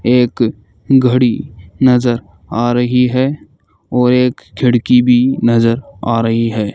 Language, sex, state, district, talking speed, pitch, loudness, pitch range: Hindi, male, Rajasthan, Bikaner, 125 wpm, 120 Hz, -13 LUFS, 115-125 Hz